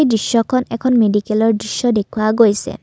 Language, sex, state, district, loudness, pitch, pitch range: Assamese, female, Assam, Kamrup Metropolitan, -16 LUFS, 225 Hz, 215-240 Hz